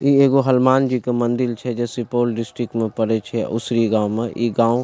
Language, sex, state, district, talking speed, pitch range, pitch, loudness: Maithili, male, Bihar, Supaul, 235 wpm, 115-125 Hz, 120 Hz, -19 LUFS